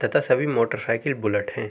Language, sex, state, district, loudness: Hindi, male, Uttar Pradesh, Jalaun, -23 LUFS